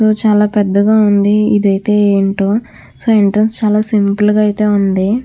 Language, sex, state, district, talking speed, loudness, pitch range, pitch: Telugu, female, Andhra Pradesh, Krishna, 150 wpm, -12 LUFS, 200-215 Hz, 210 Hz